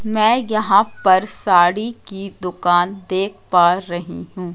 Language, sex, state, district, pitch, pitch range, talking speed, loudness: Hindi, female, Madhya Pradesh, Katni, 190 Hz, 175-215 Hz, 130 wpm, -17 LUFS